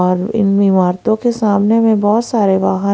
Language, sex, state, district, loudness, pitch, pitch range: Hindi, female, Haryana, Rohtak, -13 LUFS, 205 Hz, 190-220 Hz